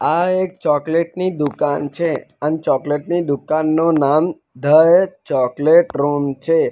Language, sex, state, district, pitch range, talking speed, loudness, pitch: Gujarati, male, Gujarat, Valsad, 145-170 Hz, 135 wpm, -17 LUFS, 155 Hz